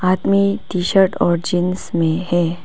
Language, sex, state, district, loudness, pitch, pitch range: Hindi, female, Arunachal Pradesh, Papum Pare, -17 LUFS, 180 Hz, 175-190 Hz